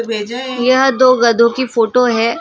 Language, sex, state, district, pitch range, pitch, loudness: Hindi, female, Maharashtra, Gondia, 230-260 Hz, 245 Hz, -13 LUFS